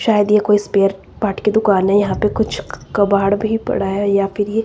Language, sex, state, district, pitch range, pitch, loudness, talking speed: Hindi, female, Himachal Pradesh, Shimla, 195-210 Hz, 205 Hz, -16 LUFS, 230 wpm